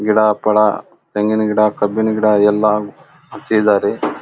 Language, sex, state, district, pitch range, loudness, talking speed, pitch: Kannada, male, Karnataka, Dharwad, 105-110 Hz, -15 LUFS, 115 wpm, 105 Hz